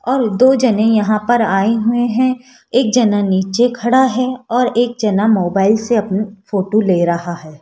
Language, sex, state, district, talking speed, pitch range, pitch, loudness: Hindi, female, Rajasthan, Jaipur, 180 wpm, 200-245 Hz, 225 Hz, -15 LUFS